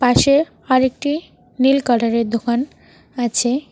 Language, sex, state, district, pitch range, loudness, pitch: Bengali, female, West Bengal, Cooch Behar, 240-275 Hz, -18 LUFS, 255 Hz